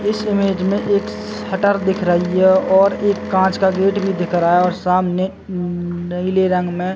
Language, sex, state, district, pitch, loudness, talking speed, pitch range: Hindi, male, Chhattisgarh, Bilaspur, 190 Hz, -17 LUFS, 200 wpm, 180-195 Hz